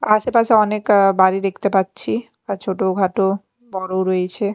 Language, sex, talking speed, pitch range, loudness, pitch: Bengali, female, 120 wpm, 190-210 Hz, -18 LUFS, 195 Hz